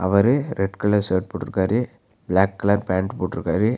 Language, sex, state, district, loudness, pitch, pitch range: Tamil, male, Tamil Nadu, Nilgiris, -22 LUFS, 100 Hz, 95-115 Hz